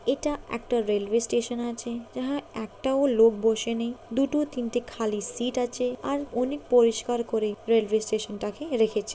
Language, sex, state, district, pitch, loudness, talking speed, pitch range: Bengali, female, West Bengal, Kolkata, 235 Hz, -27 LUFS, 155 wpm, 220-250 Hz